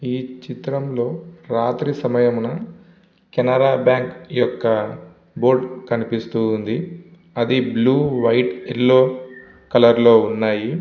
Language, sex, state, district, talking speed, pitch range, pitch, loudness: Telugu, male, Andhra Pradesh, Visakhapatnam, 100 wpm, 120-135 Hz, 125 Hz, -18 LUFS